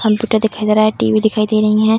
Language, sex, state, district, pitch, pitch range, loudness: Hindi, female, Bihar, Darbhanga, 215 Hz, 215-220 Hz, -14 LUFS